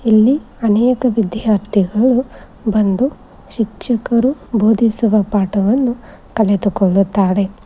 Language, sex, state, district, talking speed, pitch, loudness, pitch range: Kannada, female, Karnataka, Koppal, 65 wpm, 220 Hz, -15 LUFS, 205-240 Hz